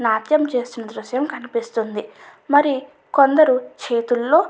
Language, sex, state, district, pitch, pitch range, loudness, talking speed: Telugu, female, Andhra Pradesh, Anantapur, 255 Hz, 235-290 Hz, -19 LUFS, 105 wpm